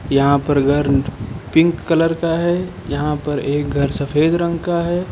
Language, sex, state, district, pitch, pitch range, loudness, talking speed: Hindi, male, Uttar Pradesh, Lucknow, 145 Hz, 140-170 Hz, -18 LUFS, 175 wpm